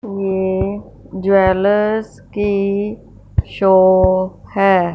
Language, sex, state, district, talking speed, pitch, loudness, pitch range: Hindi, female, Punjab, Fazilka, 50 wpm, 195 Hz, -16 LUFS, 190-205 Hz